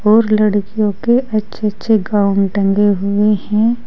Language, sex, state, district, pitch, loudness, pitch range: Hindi, female, Uttar Pradesh, Saharanpur, 210 Hz, -15 LUFS, 205-220 Hz